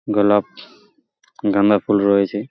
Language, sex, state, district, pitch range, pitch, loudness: Bengali, male, West Bengal, Purulia, 100-105 Hz, 105 Hz, -17 LUFS